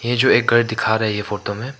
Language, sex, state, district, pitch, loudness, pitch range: Hindi, male, Arunachal Pradesh, Papum Pare, 110 Hz, -18 LUFS, 105-120 Hz